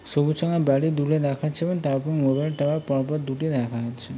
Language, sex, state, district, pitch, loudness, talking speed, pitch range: Bengali, male, West Bengal, Kolkata, 145 Hz, -24 LUFS, 170 wpm, 135-155 Hz